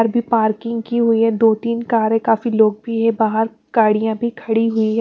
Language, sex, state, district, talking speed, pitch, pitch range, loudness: Hindi, female, Bihar, West Champaran, 225 wpm, 225 Hz, 220-230 Hz, -17 LUFS